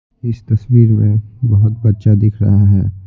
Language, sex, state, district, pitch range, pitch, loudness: Hindi, male, Bihar, Patna, 105-115 Hz, 110 Hz, -13 LUFS